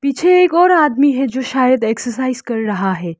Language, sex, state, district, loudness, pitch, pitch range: Hindi, female, Arunachal Pradesh, Lower Dibang Valley, -14 LUFS, 260 Hz, 230-285 Hz